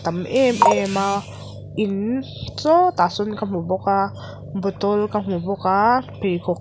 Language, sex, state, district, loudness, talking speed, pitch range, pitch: Mizo, female, Mizoram, Aizawl, -20 LUFS, 155 wpm, 175-210 Hz, 195 Hz